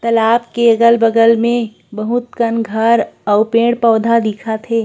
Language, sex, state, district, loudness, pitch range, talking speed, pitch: Chhattisgarhi, female, Chhattisgarh, Korba, -14 LUFS, 225-235 Hz, 125 wpm, 230 Hz